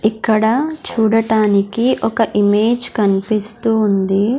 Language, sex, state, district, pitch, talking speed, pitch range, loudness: Telugu, female, Andhra Pradesh, Sri Satya Sai, 220 Hz, 80 wpm, 205-230 Hz, -15 LUFS